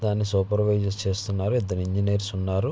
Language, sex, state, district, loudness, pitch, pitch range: Telugu, male, Andhra Pradesh, Visakhapatnam, -25 LUFS, 100 Hz, 95-105 Hz